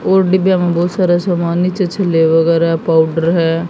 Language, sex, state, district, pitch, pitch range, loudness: Hindi, female, Haryana, Jhajjar, 170 Hz, 165-185 Hz, -13 LUFS